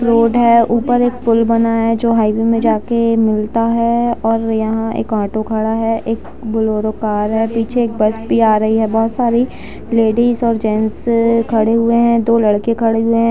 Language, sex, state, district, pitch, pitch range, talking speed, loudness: Hindi, female, Jharkhand, Jamtara, 230 Hz, 220-230 Hz, 195 wpm, -15 LUFS